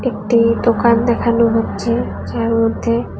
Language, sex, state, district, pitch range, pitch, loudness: Bengali, female, Tripura, West Tripura, 230-235 Hz, 235 Hz, -16 LUFS